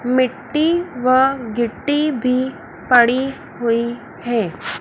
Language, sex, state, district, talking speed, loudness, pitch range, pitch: Hindi, female, Madhya Pradesh, Dhar, 85 wpm, -18 LUFS, 235-270 Hz, 255 Hz